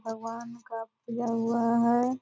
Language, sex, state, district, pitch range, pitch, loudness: Hindi, female, Bihar, Purnia, 230-235 Hz, 235 Hz, -29 LUFS